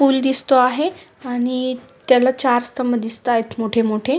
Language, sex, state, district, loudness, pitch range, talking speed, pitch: Marathi, female, Maharashtra, Sindhudurg, -18 LUFS, 240-265 Hz, 130 wpm, 255 Hz